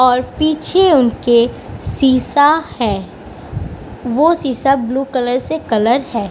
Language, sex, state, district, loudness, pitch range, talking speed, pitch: Hindi, female, Uttar Pradesh, Budaun, -14 LUFS, 245-300 Hz, 115 wpm, 265 Hz